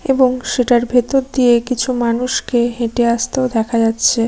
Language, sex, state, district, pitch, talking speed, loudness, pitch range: Bengali, female, West Bengal, Jalpaiguri, 245 Hz, 180 wpm, -16 LUFS, 235-255 Hz